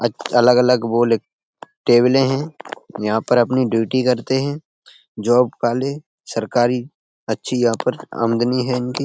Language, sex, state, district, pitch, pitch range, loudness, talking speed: Hindi, male, Uttar Pradesh, Etah, 125 Hz, 120-130 Hz, -18 LUFS, 140 wpm